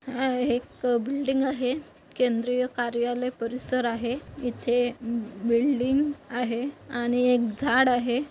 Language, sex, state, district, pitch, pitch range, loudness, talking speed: Marathi, female, Maharashtra, Nagpur, 250 Hz, 240-260 Hz, -26 LUFS, 110 wpm